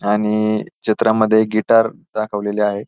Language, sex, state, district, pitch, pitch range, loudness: Marathi, male, Maharashtra, Pune, 110 Hz, 105-110 Hz, -17 LUFS